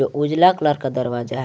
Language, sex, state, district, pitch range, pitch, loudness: Hindi, male, Jharkhand, Garhwa, 125-150 Hz, 145 Hz, -18 LUFS